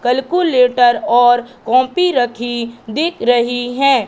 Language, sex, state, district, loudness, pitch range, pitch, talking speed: Hindi, female, Madhya Pradesh, Katni, -14 LUFS, 240-265 Hz, 245 Hz, 105 wpm